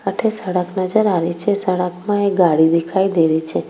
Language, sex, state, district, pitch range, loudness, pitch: Rajasthani, female, Rajasthan, Nagaur, 170-200 Hz, -17 LUFS, 185 Hz